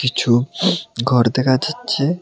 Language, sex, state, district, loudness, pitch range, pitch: Bengali, male, Tripura, West Tripura, -18 LUFS, 125-160 Hz, 130 Hz